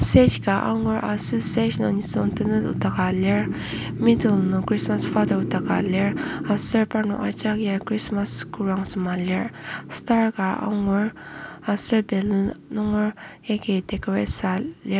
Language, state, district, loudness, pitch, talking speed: Ao, Nagaland, Kohima, -21 LUFS, 195 Hz, 135 wpm